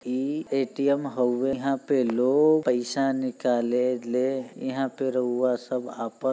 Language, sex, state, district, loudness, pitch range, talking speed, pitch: Bhojpuri, male, Uttar Pradesh, Gorakhpur, -26 LUFS, 125-135 Hz, 135 wpm, 130 Hz